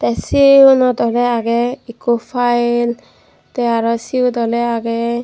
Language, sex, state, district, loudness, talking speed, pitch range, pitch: Chakma, female, Tripura, Dhalai, -14 LUFS, 125 wpm, 235-250 Hz, 240 Hz